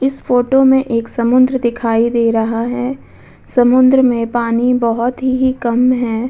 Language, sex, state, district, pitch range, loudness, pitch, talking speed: Hindi, female, Bihar, Vaishali, 235-255 Hz, -14 LUFS, 245 Hz, 150 wpm